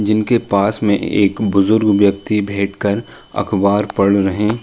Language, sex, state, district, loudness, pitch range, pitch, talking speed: Hindi, male, Uttar Pradesh, Jalaun, -16 LUFS, 100-105 Hz, 100 Hz, 155 wpm